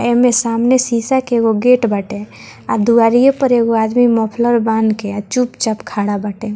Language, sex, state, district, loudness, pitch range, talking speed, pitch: Bhojpuri, female, Bihar, Muzaffarpur, -14 LUFS, 220-245 Hz, 185 wpm, 230 Hz